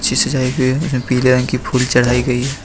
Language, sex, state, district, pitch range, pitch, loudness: Hindi, male, Jharkhand, Deoghar, 125-130 Hz, 125 Hz, -15 LUFS